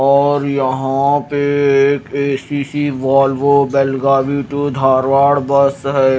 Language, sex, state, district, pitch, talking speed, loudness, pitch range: Hindi, male, Himachal Pradesh, Shimla, 140 Hz, 105 wpm, -14 LUFS, 135-140 Hz